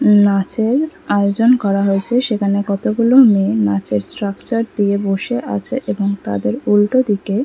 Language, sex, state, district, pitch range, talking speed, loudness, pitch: Bengali, female, West Bengal, Kolkata, 195-230 Hz, 135 wpm, -16 LUFS, 205 Hz